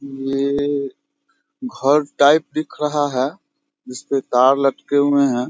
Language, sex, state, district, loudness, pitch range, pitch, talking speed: Hindi, male, Bihar, Muzaffarpur, -18 LUFS, 135-155 Hz, 145 Hz, 120 wpm